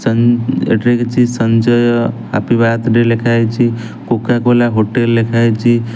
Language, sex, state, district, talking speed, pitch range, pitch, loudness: Odia, male, Odisha, Nuapada, 120 wpm, 115-120 Hz, 115 Hz, -13 LUFS